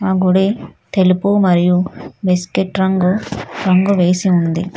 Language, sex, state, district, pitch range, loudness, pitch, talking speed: Telugu, female, Telangana, Hyderabad, 180-190 Hz, -15 LUFS, 185 Hz, 115 wpm